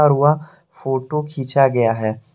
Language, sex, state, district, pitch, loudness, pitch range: Hindi, male, Jharkhand, Deoghar, 140 Hz, -18 LUFS, 130-150 Hz